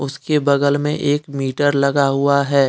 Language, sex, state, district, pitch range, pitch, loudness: Hindi, male, Jharkhand, Deoghar, 140-145 Hz, 140 Hz, -17 LUFS